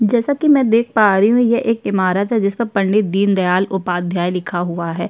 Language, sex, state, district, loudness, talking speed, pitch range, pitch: Hindi, female, Uttar Pradesh, Jyotiba Phule Nagar, -16 LUFS, 210 wpm, 180-230 Hz, 200 Hz